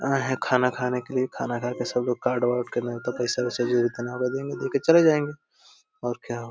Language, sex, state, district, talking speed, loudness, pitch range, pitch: Hindi, male, Uttar Pradesh, Deoria, 260 wpm, -25 LUFS, 120-130 Hz, 125 Hz